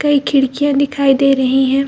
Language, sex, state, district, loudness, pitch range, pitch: Hindi, female, Bihar, Jamui, -14 LUFS, 270-285 Hz, 275 Hz